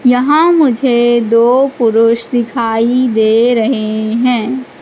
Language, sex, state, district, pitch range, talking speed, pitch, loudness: Hindi, female, Madhya Pradesh, Katni, 230-255 Hz, 100 wpm, 240 Hz, -11 LUFS